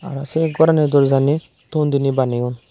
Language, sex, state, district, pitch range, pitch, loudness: Chakma, male, Tripura, Dhalai, 135-155 Hz, 140 Hz, -17 LUFS